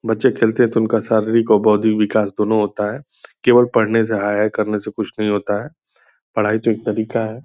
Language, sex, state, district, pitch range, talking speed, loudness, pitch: Hindi, male, Bihar, Purnia, 105-115 Hz, 220 wpm, -17 LUFS, 110 Hz